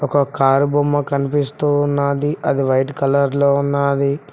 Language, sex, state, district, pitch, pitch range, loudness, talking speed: Telugu, male, Telangana, Mahabubabad, 140 Hz, 140-145 Hz, -17 LUFS, 140 wpm